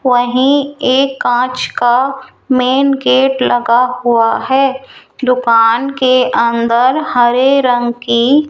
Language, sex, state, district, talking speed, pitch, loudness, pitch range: Hindi, female, Rajasthan, Jaipur, 115 wpm, 255 Hz, -12 LUFS, 240-270 Hz